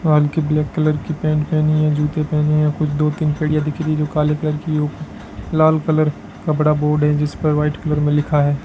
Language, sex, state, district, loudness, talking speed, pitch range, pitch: Hindi, male, Rajasthan, Bikaner, -18 LUFS, 245 wpm, 150-155 Hz, 150 Hz